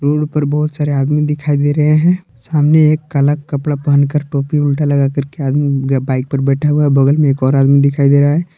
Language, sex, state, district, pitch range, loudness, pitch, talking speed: Hindi, male, Jharkhand, Palamu, 140-150 Hz, -13 LUFS, 145 Hz, 230 wpm